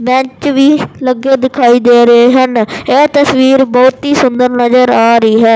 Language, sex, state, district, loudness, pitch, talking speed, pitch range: Punjabi, male, Punjab, Fazilka, -8 LUFS, 255 Hz, 170 wpm, 240-270 Hz